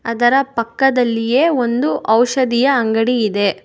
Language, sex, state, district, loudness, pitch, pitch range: Kannada, female, Karnataka, Bangalore, -15 LUFS, 240 Hz, 230-260 Hz